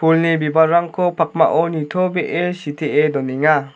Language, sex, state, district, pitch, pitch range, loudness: Garo, male, Meghalaya, South Garo Hills, 160 Hz, 150-170 Hz, -17 LUFS